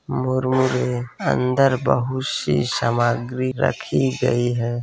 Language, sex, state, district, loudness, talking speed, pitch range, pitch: Hindi, male, Uttar Pradesh, Varanasi, -21 LUFS, 100 wpm, 120-130 Hz, 125 Hz